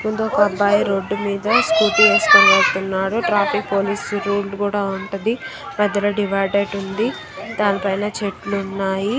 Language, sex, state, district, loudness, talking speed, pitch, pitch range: Telugu, female, Andhra Pradesh, Krishna, -18 LUFS, 130 wpm, 205 Hz, 195-215 Hz